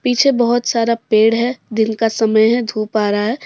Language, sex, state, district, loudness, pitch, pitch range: Hindi, female, Jharkhand, Deoghar, -15 LUFS, 225 Hz, 220-240 Hz